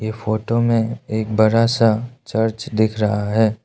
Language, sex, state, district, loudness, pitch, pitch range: Hindi, male, Arunachal Pradesh, Lower Dibang Valley, -19 LUFS, 110 Hz, 110-115 Hz